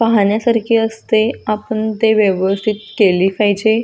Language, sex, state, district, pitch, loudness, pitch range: Marathi, female, Maharashtra, Solapur, 215 Hz, -15 LUFS, 205-225 Hz